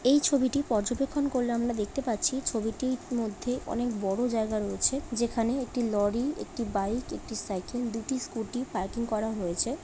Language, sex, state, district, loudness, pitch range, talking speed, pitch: Bengali, female, West Bengal, Paschim Medinipur, -30 LUFS, 220-255 Hz, 150 wpm, 235 Hz